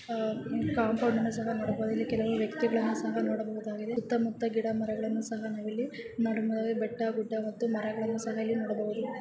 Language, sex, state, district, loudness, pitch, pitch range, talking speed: Kannada, female, Karnataka, Chamarajanagar, -32 LUFS, 225 Hz, 220-230 Hz, 135 wpm